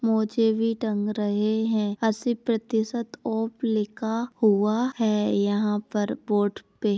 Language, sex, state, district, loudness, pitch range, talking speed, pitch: Hindi, female, Uttar Pradesh, Budaun, -25 LUFS, 210-225 Hz, 135 wpm, 220 Hz